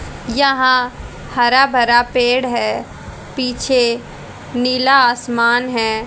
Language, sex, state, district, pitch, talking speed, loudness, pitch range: Hindi, female, Haryana, Charkhi Dadri, 245 Hz, 90 wpm, -15 LUFS, 240-255 Hz